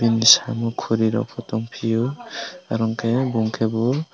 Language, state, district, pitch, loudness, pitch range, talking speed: Kokborok, Tripura, West Tripura, 115 Hz, -21 LUFS, 115-125 Hz, 145 wpm